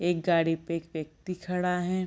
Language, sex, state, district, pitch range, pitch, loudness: Hindi, female, Bihar, Gopalganj, 165-180 Hz, 175 Hz, -29 LUFS